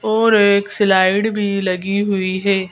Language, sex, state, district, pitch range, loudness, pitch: Hindi, female, Madhya Pradesh, Bhopal, 190-205 Hz, -16 LUFS, 200 Hz